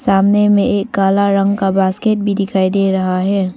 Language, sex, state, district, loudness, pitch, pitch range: Hindi, female, Arunachal Pradesh, Longding, -14 LUFS, 195 Hz, 195-200 Hz